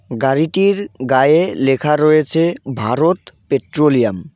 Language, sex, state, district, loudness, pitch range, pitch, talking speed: Bengali, male, West Bengal, Cooch Behar, -15 LUFS, 135-165 Hz, 150 Hz, 95 wpm